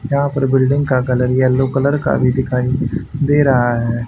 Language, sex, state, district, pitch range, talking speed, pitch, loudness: Hindi, male, Haryana, Charkhi Dadri, 125-140 Hz, 190 wpm, 130 Hz, -16 LUFS